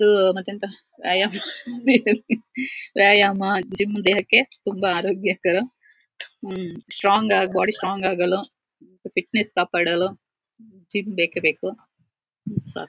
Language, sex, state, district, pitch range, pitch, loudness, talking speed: Kannada, female, Karnataka, Shimoga, 190-215 Hz, 200 Hz, -20 LUFS, 95 wpm